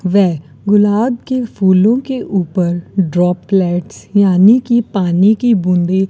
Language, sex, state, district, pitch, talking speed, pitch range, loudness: Hindi, female, Rajasthan, Bikaner, 195 Hz, 130 wpm, 180-220 Hz, -13 LUFS